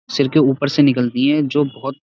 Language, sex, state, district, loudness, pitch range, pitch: Hindi, male, Uttar Pradesh, Budaun, -16 LUFS, 135-145 Hz, 140 Hz